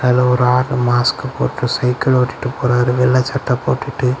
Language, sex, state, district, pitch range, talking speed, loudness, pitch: Tamil, male, Tamil Nadu, Kanyakumari, 125-130 Hz, 155 wpm, -16 LUFS, 125 Hz